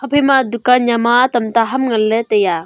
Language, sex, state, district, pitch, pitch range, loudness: Wancho, female, Arunachal Pradesh, Longding, 240 Hz, 225-260 Hz, -14 LUFS